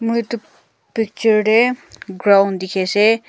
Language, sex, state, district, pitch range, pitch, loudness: Nagamese, female, Nagaland, Kohima, 200-230 Hz, 220 Hz, -16 LUFS